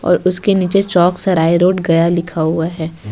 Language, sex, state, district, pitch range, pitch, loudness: Hindi, female, Jharkhand, Ranchi, 165-185 Hz, 175 Hz, -14 LUFS